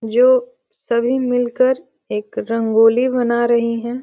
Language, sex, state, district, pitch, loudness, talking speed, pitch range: Hindi, female, Bihar, Gaya, 240 Hz, -17 LUFS, 120 wpm, 230-260 Hz